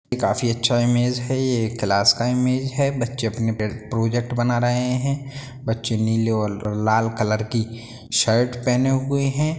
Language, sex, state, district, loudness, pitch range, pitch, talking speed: Hindi, male, Bihar, Sitamarhi, -21 LUFS, 115-125 Hz, 120 Hz, 170 wpm